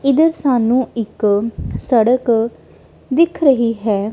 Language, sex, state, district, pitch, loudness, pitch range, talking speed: Punjabi, female, Punjab, Kapurthala, 235 Hz, -16 LUFS, 225-275 Hz, 100 wpm